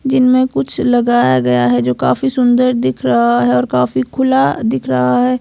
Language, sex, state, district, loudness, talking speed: Hindi, female, Himachal Pradesh, Shimla, -13 LUFS, 190 wpm